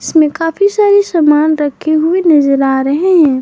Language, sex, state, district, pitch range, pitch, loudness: Hindi, female, Jharkhand, Garhwa, 295-350 Hz, 315 Hz, -11 LUFS